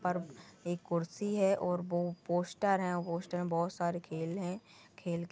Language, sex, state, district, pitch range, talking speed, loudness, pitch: Hindi, female, Chhattisgarh, Kabirdham, 170-180 Hz, 190 wpm, -35 LUFS, 175 Hz